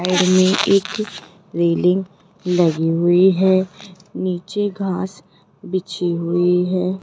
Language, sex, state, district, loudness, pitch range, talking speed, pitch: Hindi, female, Rajasthan, Jaipur, -18 LUFS, 175-190 Hz, 95 wpm, 185 Hz